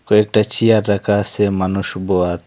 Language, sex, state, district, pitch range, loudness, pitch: Bengali, male, Assam, Hailakandi, 95-105 Hz, -16 LUFS, 100 Hz